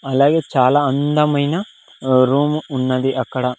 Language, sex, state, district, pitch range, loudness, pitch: Telugu, male, Andhra Pradesh, Sri Satya Sai, 130-150 Hz, -17 LUFS, 140 Hz